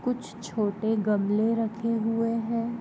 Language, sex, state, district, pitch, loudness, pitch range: Hindi, female, Goa, North and South Goa, 225 Hz, -27 LUFS, 215-230 Hz